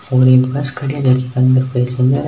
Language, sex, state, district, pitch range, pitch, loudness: Hindi, male, Rajasthan, Nagaur, 130-135 Hz, 130 Hz, -14 LUFS